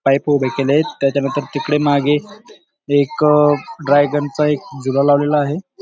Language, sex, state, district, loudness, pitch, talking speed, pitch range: Marathi, male, Maharashtra, Dhule, -16 LUFS, 145 Hz, 135 wpm, 140-150 Hz